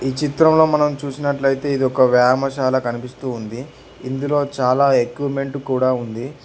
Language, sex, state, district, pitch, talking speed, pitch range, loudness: Telugu, male, Telangana, Hyderabad, 135 Hz, 130 wpm, 125-140 Hz, -18 LUFS